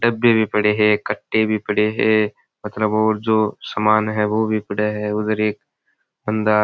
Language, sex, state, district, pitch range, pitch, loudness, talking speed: Rajasthani, male, Rajasthan, Churu, 105-110 Hz, 110 Hz, -19 LUFS, 190 wpm